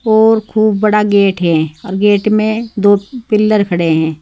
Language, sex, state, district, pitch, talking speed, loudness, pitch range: Hindi, female, Uttar Pradesh, Saharanpur, 210 Hz, 170 wpm, -12 LUFS, 190-215 Hz